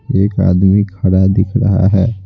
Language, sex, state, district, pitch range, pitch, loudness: Hindi, male, Bihar, Patna, 95-100 Hz, 95 Hz, -12 LUFS